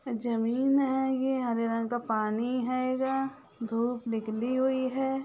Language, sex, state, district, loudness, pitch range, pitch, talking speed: Magahi, female, Bihar, Lakhisarai, -29 LUFS, 230-265 Hz, 250 Hz, 135 wpm